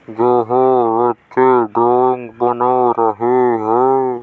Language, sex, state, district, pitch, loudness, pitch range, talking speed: Hindi, male, Uttar Pradesh, Jyotiba Phule Nagar, 120 Hz, -14 LUFS, 120-125 Hz, 85 wpm